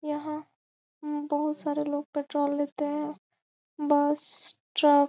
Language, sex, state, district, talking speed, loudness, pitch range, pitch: Hindi, female, Bihar, Gopalganj, 120 wpm, -29 LUFS, 290-300 Hz, 295 Hz